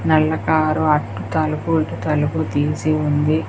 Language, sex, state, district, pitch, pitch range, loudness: Telugu, female, Telangana, Komaram Bheem, 155 Hz, 150-155 Hz, -19 LUFS